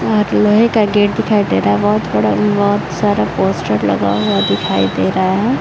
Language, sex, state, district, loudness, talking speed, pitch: Hindi, female, Uttar Pradesh, Varanasi, -14 LUFS, 215 wpm, 200 Hz